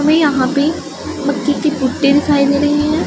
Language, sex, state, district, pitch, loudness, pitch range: Hindi, female, Punjab, Pathankot, 290 Hz, -15 LUFS, 280-305 Hz